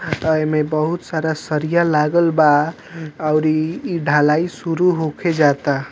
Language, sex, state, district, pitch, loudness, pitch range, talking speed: Bhojpuri, male, Bihar, Muzaffarpur, 155 Hz, -18 LUFS, 150-165 Hz, 150 wpm